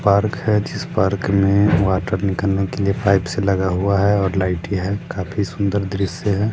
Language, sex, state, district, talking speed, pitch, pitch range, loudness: Hindi, male, Bihar, Sitamarhi, 185 wpm, 100 Hz, 95-100 Hz, -19 LUFS